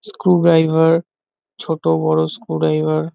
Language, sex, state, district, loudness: Bengali, male, West Bengal, North 24 Parganas, -16 LUFS